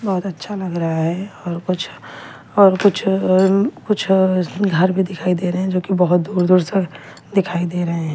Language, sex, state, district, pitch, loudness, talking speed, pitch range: Hindi, female, Delhi, New Delhi, 185 Hz, -18 LUFS, 190 wpm, 175-195 Hz